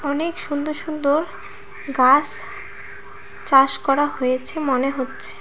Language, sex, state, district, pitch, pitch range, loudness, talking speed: Bengali, female, West Bengal, Cooch Behar, 280 Hz, 270-300 Hz, -18 LUFS, 100 wpm